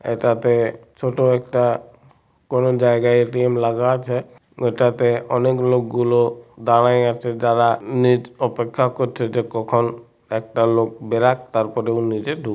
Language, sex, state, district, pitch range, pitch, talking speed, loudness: Bengali, male, West Bengal, Purulia, 115-125 Hz, 120 Hz, 125 wpm, -19 LUFS